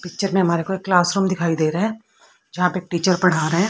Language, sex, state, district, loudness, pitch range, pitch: Hindi, female, Haryana, Rohtak, -20 LUFS, 170-195 Hz, 185 Hz